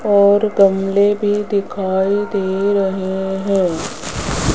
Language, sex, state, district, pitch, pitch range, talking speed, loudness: Hindi, female, Rajasthan, Jaipur, 200 Hz, 190-205 Hz, 90 wpm, -17 LUFS